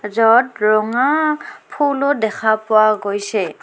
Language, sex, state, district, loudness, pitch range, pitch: Assamese, female, Assam, Kamrup Metropolitan, -16 LUFS, 215-285 Hz, 225 Hz